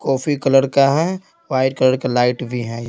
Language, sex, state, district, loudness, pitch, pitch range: Hindi, male, Bihar, Patna, -17 LUFS, 130 Hz, 125-140 Hz